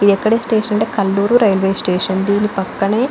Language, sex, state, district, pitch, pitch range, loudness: Telugu, female, Andhra Pradesh, Anantapur, 200 Hz, 195-220 Hz, -15 LUFS